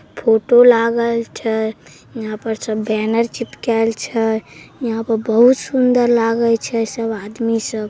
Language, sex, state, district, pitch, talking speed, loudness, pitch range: Maithili, female, Bihar, Samastipur, 225 Hz, 135 wpm, -17 LUFS, 220-235 Hz